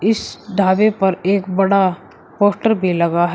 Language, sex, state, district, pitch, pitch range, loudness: Hindi, male, Uttar Pradesh, Shamli, 195 Hz, 185-205 Hz, -16 LUFS